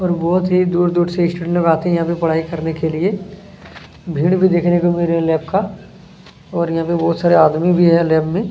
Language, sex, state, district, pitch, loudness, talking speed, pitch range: Hindi, male, Chhattisgarh, Kabirdham, 175 Hz, -16 LUFS, 235 wpm, 165-180 Hz